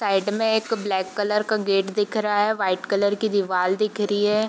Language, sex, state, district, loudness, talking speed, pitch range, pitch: Hindi, female, Bihar, East Champaran, -22 LUFS, 225 wpm, 195-215 Hz, 205 Hz